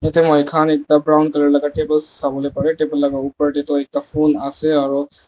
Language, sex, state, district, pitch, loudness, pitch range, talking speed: Nagamese, male, Nagaland, Dimapur, 145 Hz, -17 LUFS, 145-155 Hz, 205 wpm